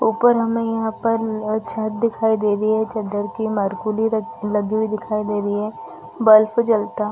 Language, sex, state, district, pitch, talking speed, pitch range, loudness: Hindi, female, Chhattisgarh, Rajnandgaon, 220 Hz, 185 wpm, 210-225 Hz, -20 LUFS